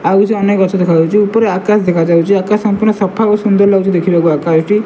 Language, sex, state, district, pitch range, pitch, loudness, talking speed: Odia, male, Odisha, Malkangiri, 180-210 Hz, 200 Hz, -11 LUFS, 220 wpm